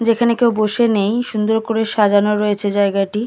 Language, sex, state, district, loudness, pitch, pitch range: Bengali, female, West Bengal, Kolkata, -16 LUFS, 215 Hz, 205-230 Hz